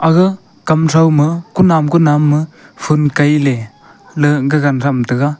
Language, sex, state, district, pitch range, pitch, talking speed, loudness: Wancho, male, Arunachal Pradesh, Longding, 145-160 Hz, 150 Hz, 110 wpm, -13 LUFS